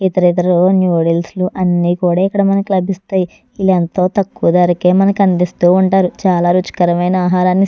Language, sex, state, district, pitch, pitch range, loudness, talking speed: Telugu, female, Andhra Pradesh, Chittoor, 185 Hz, 175-190 Hz, -13 LUFS, 155 wpm